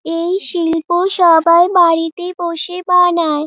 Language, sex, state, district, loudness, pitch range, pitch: Bengali, female, West Bengal, Dakshin Dinajpur, -13 LUFS, 330-360 Hz, 345 Hz